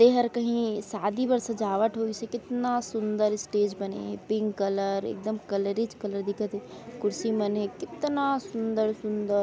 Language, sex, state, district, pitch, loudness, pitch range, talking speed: Chhattisgarhi, female, Chhattisgarh, Raigarh, 215 Hz, -29 LUFS, 205-235 Hz, 170 wpm